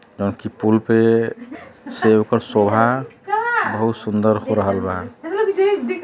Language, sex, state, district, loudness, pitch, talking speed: Bhojpuri, male, Uttar Pradesh, Deoria, -18 LUFS, 115 Hz, 90 wpm